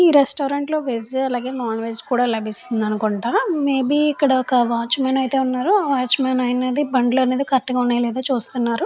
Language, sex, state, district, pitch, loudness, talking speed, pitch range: Telugu, female, Andhra Pradesh, Chittoor, 260 Hz, -19 LUFS, 175 wpm, 240-275 Hz